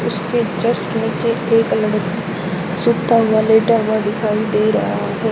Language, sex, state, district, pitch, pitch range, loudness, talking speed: Hindi, female, Haryana, Charkhi Dadri, 220 Hz, 210-230 Hz, -16 LUFS, 145 wpm